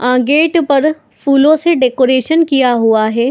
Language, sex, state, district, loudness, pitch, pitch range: Hindi, female, Bihar, Madhepura, -12 LUFS, 275 Hz, 250-310 Hz